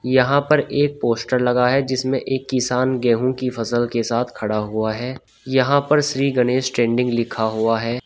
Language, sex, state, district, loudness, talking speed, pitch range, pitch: Hindi, male, Uttar Pradesh, Shamli, -19 LUFS, 185 wpm, 115-130 Hz, 125 Hz